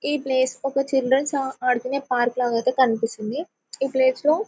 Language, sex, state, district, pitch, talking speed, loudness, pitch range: Telugu, female, Telangana, Karimnagar, 260 Hz, 160 wpm, -22 LUFS, 250-275 Hz